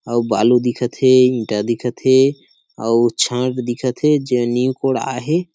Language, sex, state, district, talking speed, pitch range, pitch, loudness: Chhattisgarhi, male, Chhattisgarh, Sarguja, 150 wpm, 120-130 Hz, 125 Hz, -17 LUFS